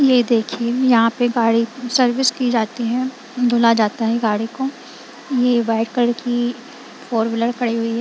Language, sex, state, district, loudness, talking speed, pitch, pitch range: Hindi, female, Punjab, Kapurthala, -18 LUFS, 170 wpm, 240 Hz, 230-250 Hz